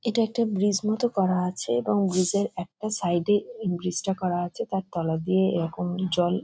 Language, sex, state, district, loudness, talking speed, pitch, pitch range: Bengali, female, West Bengal, Kolkata, -26 LUFS, 205 wpm, 185 Hz, 175-205 Hz